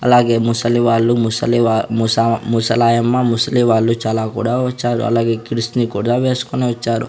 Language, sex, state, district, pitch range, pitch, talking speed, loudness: Telugu, male, Andhra Pradesh, Sri Satya Sai, 115-120 Hz, 115 Hz, 145 wpm, -16 LUFS